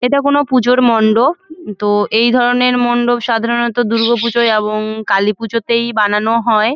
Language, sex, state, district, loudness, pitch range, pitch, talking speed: Bengali, female, West Bengal, Jalpaiguri, -13 LUFS, 220-245 Hz, 235 Hz, 140 wpm